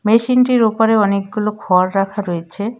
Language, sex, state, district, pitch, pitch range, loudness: Bengali, female, West Bengal, Cooch Behar, 210 Hz, 195-225 Hz, -16 LUFS